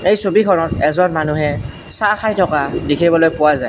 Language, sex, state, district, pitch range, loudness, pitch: Assamese, male, Assam, Kamrup Metropolitan, 150-195 Hz, -15 LUFS, 170 Hz